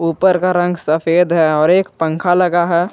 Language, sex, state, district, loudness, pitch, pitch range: Hindi, male, Jharkhand, Garhwa, -14 LUFS, 175 Hz, 165-180 Hz